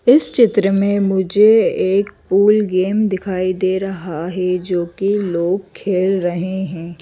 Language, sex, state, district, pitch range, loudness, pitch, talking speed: Hindi, female, Madhya Pradesh, Bhopal, 180-200 Hz, -17 LUFS, 190 Hz, 145 wpm